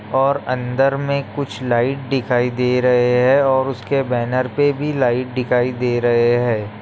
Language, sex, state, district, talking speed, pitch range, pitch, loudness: Hindi, male, Bihar, Muzaffarpur, 165 wpm, 120-135 Hz, 125 Hz, -18 LUFS